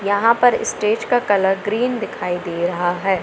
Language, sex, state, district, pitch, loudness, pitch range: Hindi, female, Madhya Pradesh, Katni, 200 Hz, -18 LUFS, 180-230 Hz